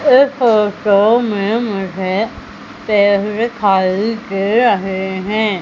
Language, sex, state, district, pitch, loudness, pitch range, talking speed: Hindi, female, Madhya Pradesh, Umaria, 210 Hz, -15 LUFS, 195-225 Hz, 95 wpm